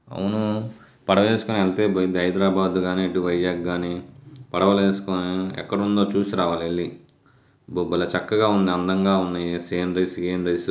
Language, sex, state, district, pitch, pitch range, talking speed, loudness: Telugu, male, Andhra Pradesh, Guntur, 95 Hz, 90-100 Hz, 100 wpm, -22 LUFS